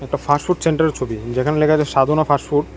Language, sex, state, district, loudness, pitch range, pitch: Bengali, male, Tripura, West Tripura, -18 LUFS, 135-155 Hz, 145 Hz